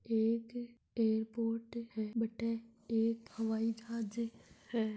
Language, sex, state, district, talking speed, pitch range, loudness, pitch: Marwari, male, Rajasthan, Nagaur, 85 wpm, 225-230 Hz, -37 LUFS, 230 Hz